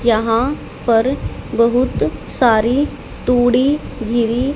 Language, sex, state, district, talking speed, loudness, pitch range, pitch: Hindi, female, Haryana, Charkhi Dadri, 80 wpm, -17 LUFS, 230-260 Hz, 245 Hz